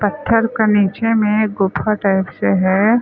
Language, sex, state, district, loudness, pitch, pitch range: Chhattisgarhi, female, Chhattisgarh, Sarguja, -16 LUFS, 210 Hz, 195-220 Hz